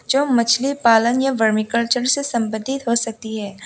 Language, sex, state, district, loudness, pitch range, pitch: Hindi, female, Tripura, West Tripura, -18 LUFS, 220-265 Hz, 235 Hz